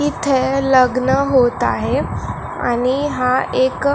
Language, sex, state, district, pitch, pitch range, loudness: Marathi, female, Maharashtra, Gondia, 260 Hz, 255-275 Hz, -17 LUFS